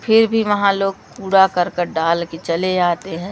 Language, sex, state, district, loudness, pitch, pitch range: Hindi, female, Madhya Pradesh, Umaria, -17 LUFS, 190 Hz, 170-195 Hz